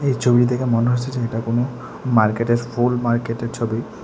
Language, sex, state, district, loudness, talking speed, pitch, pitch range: Bengali, male, Tripura, West Tripura, -20 LUFS, 180 wpm, 120 Hz, 115-125 Hz